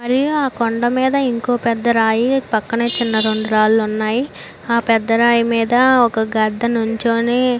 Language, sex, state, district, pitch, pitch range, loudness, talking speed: Telugu, female, Andhra Pradesh, Anantapur, 235 Hz, 225-245 Hz, -16 LUFS, 150 wpm